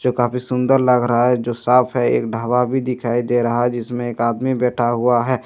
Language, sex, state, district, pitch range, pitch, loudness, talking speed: Hindi, male, Bihar, Katihar, 120-125 Hz, 120 Hz, -18 LUFS, 265 wpm